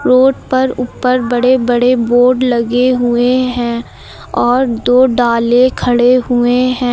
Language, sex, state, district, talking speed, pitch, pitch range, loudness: Hindi, female, Uttar Pradesh, Lucknow, 130 wpm, 245 Hz, 240-255 Hz, -12 LUFS